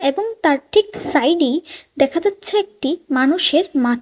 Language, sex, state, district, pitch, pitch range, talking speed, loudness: Bengali, female, Tripura, West Tripura, 320 Hz, 280-395 Hz, 135 wpm, -16 LUFS